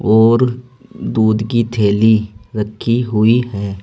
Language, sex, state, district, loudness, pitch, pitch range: Hindi, male, Uttar Pradesh, Saharanpur, -15 LUFS, 110 Hz, 105-120 Hz